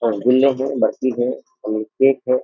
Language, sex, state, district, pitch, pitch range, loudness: Hindi, male, Uttar Pradesh, Jyotiba Phule Nagar, 130 Hz, 115-135 Hz, -18 LUFS